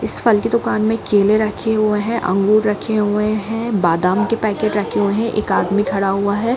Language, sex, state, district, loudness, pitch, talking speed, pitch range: Hindi, female, Jharkhand, Jamtara, -17 LUFS, 210 Hz, 220 wpm, 205-220 Hz